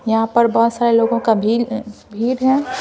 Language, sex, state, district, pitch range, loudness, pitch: Hindi, female, Bihar, Patna, 225-240 Hz, -16 LUFS, 230 Hz